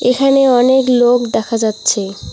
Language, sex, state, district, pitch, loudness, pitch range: Bengali, female, West Bengal, Cooch Behar, 245 Hz, -13 LUFS, 230-260 Hz